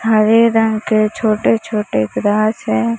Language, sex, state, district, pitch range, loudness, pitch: Hindi, female, Maharashtra, Mumbai Suburban, 210-225 Hz, -15 LUFS, 215 Hz